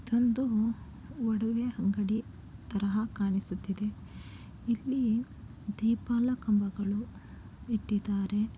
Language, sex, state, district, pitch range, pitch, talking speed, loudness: Kannada, female, Karnataka, Chamarajanagar, 205-235 Hz, 215 Hz, 65 wpm, -32 LUFS